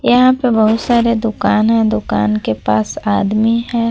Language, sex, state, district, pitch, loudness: Hindi, female, Jharkhand, Palamu, 225 Hz, -14 LUFS